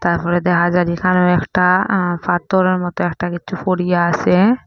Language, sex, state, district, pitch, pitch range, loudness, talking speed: Bengali, female, Assam, Hailakandi, 180 Hz, 175-185 Hz, -16 LUFS, 155 wpm